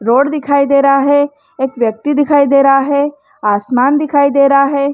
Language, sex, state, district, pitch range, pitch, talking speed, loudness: Hindi, female, Chhattisgarh, Rajnandgaon, 270-285 Hz, 280 Hz, 195 wpm, -12 LUFS